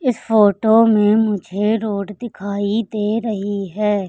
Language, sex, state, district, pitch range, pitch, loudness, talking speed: Hindi, female, Madhya Pradesh, Katni, 200-220 Hz, 210 Hz, -17 LUFS, 130 wpm